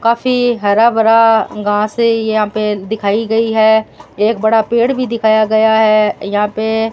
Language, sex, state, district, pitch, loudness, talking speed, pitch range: Hindi, female, Rajasthan, Bikaner, 220 Hz, -13 LUFS, 175 wpm, 215-230 Hz